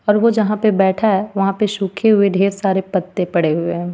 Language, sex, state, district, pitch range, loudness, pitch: Hindi, female, Jharkhand, Ranchi, 190-210 Hz, -16 LUFS, 195 Hz